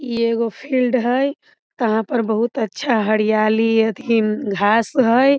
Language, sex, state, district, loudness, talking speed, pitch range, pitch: Maithili, female, Bihar, Samastipur, -18 LUFS, 135 wpm, 220-255 Hz, 230 Hz